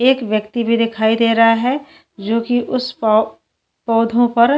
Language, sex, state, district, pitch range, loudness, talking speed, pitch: Hindi, female, Chhattisgarh, Jashpur, 225-245 Hz, -16 LUFS, 170 wpm, 230 Hz